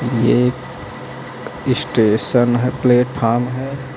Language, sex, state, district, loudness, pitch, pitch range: Hindi, male, Uttar Pradesh, Lucknow, -16 LUFS, 125 Hz, 120-130 Hz